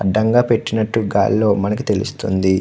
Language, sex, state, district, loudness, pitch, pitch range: Telugu, male, Andhra Pradesh, Krishna, -17 LUFS, 105 Hz, 100-110 Hz